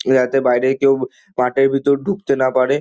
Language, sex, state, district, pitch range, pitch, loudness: Bengali, male, West Bengal, Dakshin Dinajpur, 130-135 Hz, 135 Hz, -17 LUFS